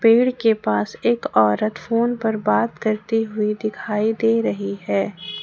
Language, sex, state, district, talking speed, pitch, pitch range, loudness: Hindi, female, Jharkhand, Ranchi, 155 wpm, 220 Hz, 210-230 Hz, -20 LUFS